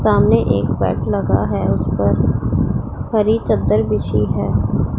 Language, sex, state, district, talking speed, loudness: Hindi, female, Punjab, Pathankot, 130 wpm, -17 LUFS